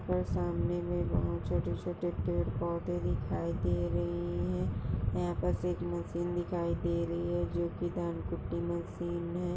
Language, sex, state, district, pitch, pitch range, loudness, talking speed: Hindi, female, Uttar Pradesh, Budaun, 90 Hz, 85-105 Hz, -34 LUFS, 145 wpm